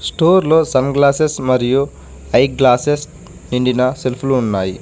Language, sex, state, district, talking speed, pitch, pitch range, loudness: Telugu, male, Telangana, Mahabubabad, 125 wpm, 130 Hz, 125-145 Hz, -15 LUFS